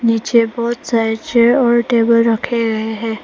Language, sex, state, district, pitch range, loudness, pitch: Hindi, female, Arunachal Pradesh, Papum Pare, 225-235 Hz, -15 LUFS, 230 Hz